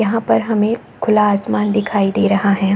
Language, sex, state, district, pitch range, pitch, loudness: Hindi, female, Chhattisgarh, Balrampur, 200-220 Hz, 210 Hz, -16 LUFS